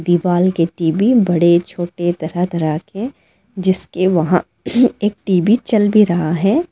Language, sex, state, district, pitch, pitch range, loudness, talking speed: Hindi, female, Arunachal Pradesh, Lower Dibang Valley, 180 Hz, 175-210 Hz, -16 LUFS, 145 wpm